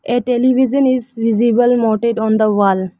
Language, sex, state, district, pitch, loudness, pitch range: English, female, Arunachal Pradesh, Lower Dibang Valley, 235 Hz, -14 LUFS, 220-245 Hz